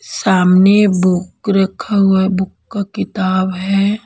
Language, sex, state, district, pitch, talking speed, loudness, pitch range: Hindi, female, Bihar, Patna, 190 Hz, 135 wpm, -14 LUFS, 185-200 Hz